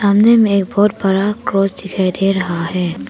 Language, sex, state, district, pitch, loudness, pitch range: Hindi, female, Arunachal Pradesh, Papum Pare, 195 Hz, -15 LUFS, 185-205 Hz